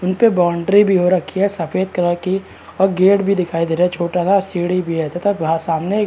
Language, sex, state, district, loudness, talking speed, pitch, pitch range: Hindi, male, Bihar, Araria, -17 LUFS, 265 wpm, 185 Hz, 175-195 Hz